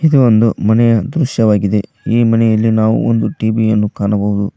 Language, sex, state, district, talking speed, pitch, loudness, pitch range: Kannada, male, Karnataka, Koppal, 145 wpm, 110 Hz, -13 LUFS, 105-115 Hz